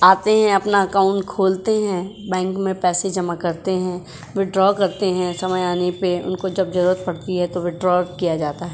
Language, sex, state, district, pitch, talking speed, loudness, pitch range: Hindi, female, Uttar Pradesh, Jyotiba Phule Nagar, 185 Hz, 190 wpm, -20 LUFS, 180-195 Hz